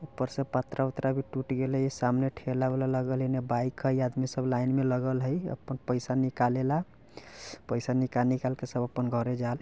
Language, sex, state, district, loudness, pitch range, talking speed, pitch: Bajjika, male, Bihar, Vaishali, -30 LUFS, 125-135 Hz, 200 wpm, 130 Hz